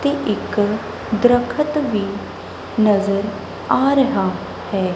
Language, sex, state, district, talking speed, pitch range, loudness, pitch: Punjabi, female, Punjab, Kapurthala, 95 wpm, 200-270 Hz, -19 LUFS, 215 Hz